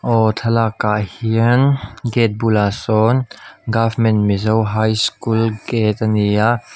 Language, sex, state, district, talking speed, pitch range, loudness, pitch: Mizo, male, Mizoram, Aizawl, 125 wpm, 110-115 Hz, -16 LUFS, 110 Hz